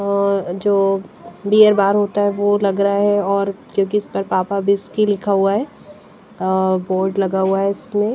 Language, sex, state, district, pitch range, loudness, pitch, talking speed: Hindi, female, Punjab, Pathankot, 195-205 Hz, -17 LUFS, 200 Hz, 175 wpm